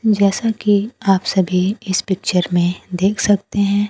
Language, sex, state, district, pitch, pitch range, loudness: Hindi, female, Bihar, Kaimur, 200 Hz, 185-210 Hz, -17 LUFS